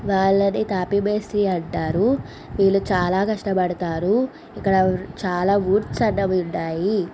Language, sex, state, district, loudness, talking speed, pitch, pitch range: Telugu, female, Andhra Pradesh, Visakhapatnam, -21 LUFS, 90 wpm, 195 Hz, 185-205 Hz